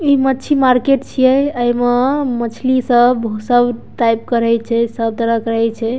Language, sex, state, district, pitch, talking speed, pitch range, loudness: Maithili, female, Bihar, Darbhanga, 245 Hz, 170 wpm, 230-260 Hz, -15 LUFS